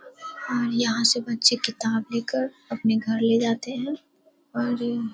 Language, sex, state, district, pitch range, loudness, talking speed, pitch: Hindi, female, Bihar, Darbhanga, 230-260 Hz, -24 LUFS, 150 wpm, 240 Hz